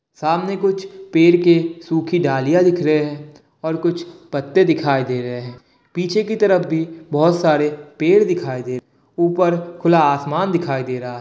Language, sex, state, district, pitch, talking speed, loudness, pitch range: Hindi, male, Bihar, Kishanganj, 165 Hz, 180 wpm, -18 LUFS, 140-175 Hz